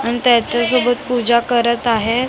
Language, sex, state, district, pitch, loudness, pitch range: Marathi, female, Maharashtra, Mumbai Suburban, 240 Hz, -15 LUFS, 235-245 Hz